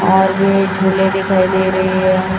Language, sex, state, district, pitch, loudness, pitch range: Hindi, male, Chhattisgarh, Raipur, 190 Hz, -14 LUFS, 190-195 Hz